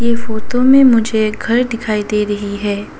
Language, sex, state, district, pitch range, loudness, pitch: Hindi, female, Arunachal Pradesh, Lower Dibang Valley, 210-235 Hz, -14 LUFS, 220 Hz